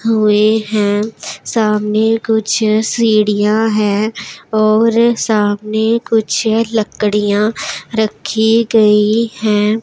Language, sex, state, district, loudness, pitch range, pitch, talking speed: Hindi, male, Punjab, Pathankot, -14 LUFS, 210-225 Hz, 220 Hz, 80 wpm